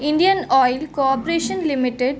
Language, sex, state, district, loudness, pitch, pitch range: Hindi, female, Chhattisgarh, Korba, -19 LUFS, 280 Hz, 265-330 Hz